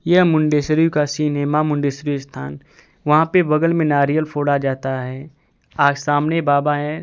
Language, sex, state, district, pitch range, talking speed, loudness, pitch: Hindi, male, Bihar, Kaimur, 140-155 Hz, 170 wpm, -18 LUFS, 150 Hz